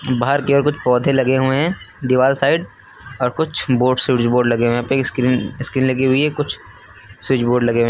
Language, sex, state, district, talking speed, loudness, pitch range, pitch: Hindi, male, Uttar Pradesh, Lucknow, 230 wpm, -17 LUFS, 125-140 Hz, 130 Hz